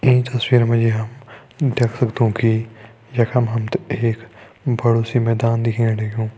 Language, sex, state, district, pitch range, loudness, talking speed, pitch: Hindi, male, Uttarakhand, Tehri Garhwal, 115-125 Hz, -19 LUFS, 150 wpm, 115 Hz